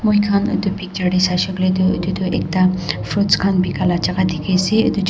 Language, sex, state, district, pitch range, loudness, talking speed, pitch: Nagamese, female, Nagaland, Dimapur, 185-195 Hz, -17 LUFS, 200 wpm, 185 Hz